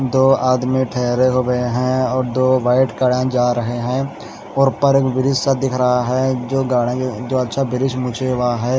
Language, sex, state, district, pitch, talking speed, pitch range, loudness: Hindi, male, Haryana, Charkhi Dadri, 130 Hz, 185 wpm, 125-130 Hz, -17 LUFS